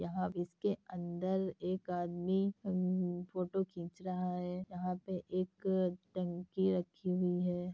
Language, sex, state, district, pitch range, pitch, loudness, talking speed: Hindi, female, Bihar, Kishanganj, 180-185 Hz, 180 Hz, -38 LUFS, 130 wpm